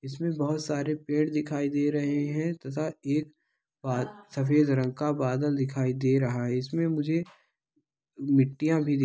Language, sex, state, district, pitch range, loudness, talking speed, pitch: Angika, male, Bihar, Madhepura, 135-155 Hz, -28 LUFS, 160 wpm, 145 Hz